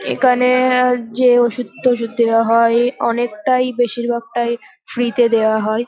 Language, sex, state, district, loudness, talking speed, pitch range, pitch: Bengali, female, West Bengal, North 24 Parganas, -16 LUFS, 130 wpm, 230-250 Hz, 240 Hz